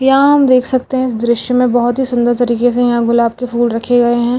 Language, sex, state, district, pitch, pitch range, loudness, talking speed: Hindi, female, Goa, North and South Goa, 245 Hz, 240-255 Hz, -13 LUFS, 275 wpm